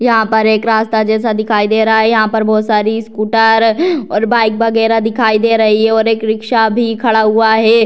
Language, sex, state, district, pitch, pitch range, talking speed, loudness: Hindi, female, Bihar, Purnia, 220 Hz, 220-225 Hz, 215 wpm, -12 LUFS